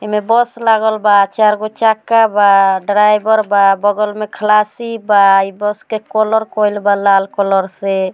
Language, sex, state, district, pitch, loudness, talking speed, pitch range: Bhojpuri, female, Bihar, Muzaffarpur, 210 Hz, -13 LUFS, 170 wpm, 200-220 Hz